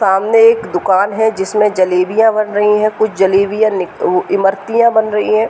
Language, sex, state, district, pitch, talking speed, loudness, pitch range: Hindi, female, Uttar Pradesh, Deoria, 210 Hz, 175 wpm, -13 LUFS, 195-220 Hz